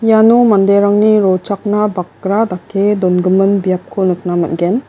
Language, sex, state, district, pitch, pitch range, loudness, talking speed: Garo, female, Meghalaya, West Garo Hills, 200 Hz, 185-210 Hz, -13 LUFS, 110 wpm